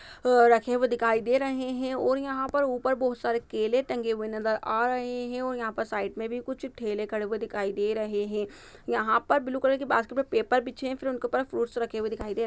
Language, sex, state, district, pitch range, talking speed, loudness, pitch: Hindi, female, Uttar Pradesh, Jyotiba Phule Nagar, 220-260 Hz, 255 wpm, -28 LUFS, 240 Hz